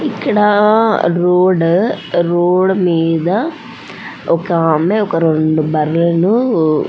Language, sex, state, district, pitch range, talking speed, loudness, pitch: Telugu, female, Andhra Pradesh, Anantapur, 165-195 Hz, 80 wpm, -13 LUFS, 175 Hz